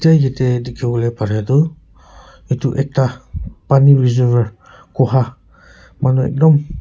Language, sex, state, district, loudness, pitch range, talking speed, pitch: Nagamese, male, Nagaland, Kohima, -15 LUFS, 120-135 Hz, 105 wpm, 130 Hz